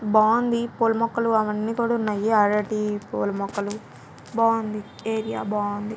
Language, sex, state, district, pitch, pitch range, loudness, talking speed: Telugu, female, Andhra Pradesh, Krishna, 215 Hz, 210-230 Hz, -24 LUFS, 130 wpm